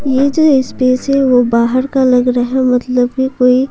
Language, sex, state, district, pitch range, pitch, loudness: Hindi, female, Bihar, Patna, 250-265 Hz, 255 Hz, -12 LUFS